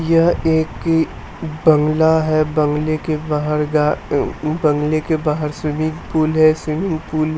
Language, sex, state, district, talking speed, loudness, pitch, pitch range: Hindi, male, Bihar, West Champaran, 145 wpm, -17 LUFS, 155 Hz, 150-160 Hz